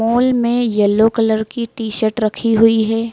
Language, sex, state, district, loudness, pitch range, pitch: Hindi, female, Madhya Pradesh, Dhar, -15 LUFS, 220-230 Hz, 225 Hz